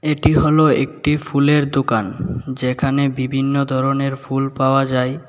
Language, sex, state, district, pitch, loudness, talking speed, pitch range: Bengali, male, Tripura, West Tripura, 135 Hz, -18 LUFS, 125 wpm, 130-145 Hz